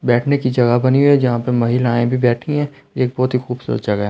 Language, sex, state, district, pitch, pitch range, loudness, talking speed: Hindi, male, Delhi, New Delhi, 125 Hz, 120-130 Hz, -17 LUFS, 265 wpm